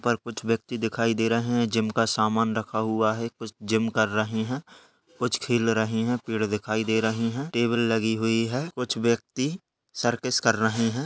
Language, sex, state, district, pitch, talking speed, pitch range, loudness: Hindi, male, Bihar, Darbhanga, 115 Hz, 205 wpm, 110-120 Hz, -26 LUFS